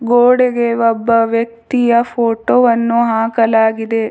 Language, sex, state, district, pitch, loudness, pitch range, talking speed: Kannada, female, Karnataka, Bidar, 230 Hz, -13 LUFS, 225-240 Hz, 85 wpm